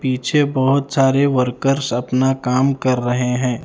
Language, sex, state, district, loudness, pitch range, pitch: Hindi, male, Bihar, Kaimur, -17 LUFS, 125-135 Hz, 130 Hz